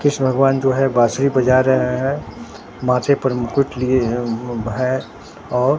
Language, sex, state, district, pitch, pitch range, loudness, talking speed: Hindi, male, Bihar, Katihar, 130 Hz, 125-135 Hz, -18 LUFS, 145 wpm